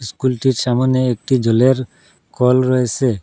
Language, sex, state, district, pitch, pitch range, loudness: Bengali, male, Assam, Hailakandi, 125 Hz, 120-130 Hz, -16 LUFS